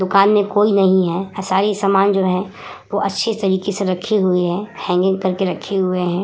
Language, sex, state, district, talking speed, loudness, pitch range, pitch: Hindi, female, Uttar Pradesh, Hamirpur, 210 wpm, -17 LUFS, 185-200 Hz, 190 Hz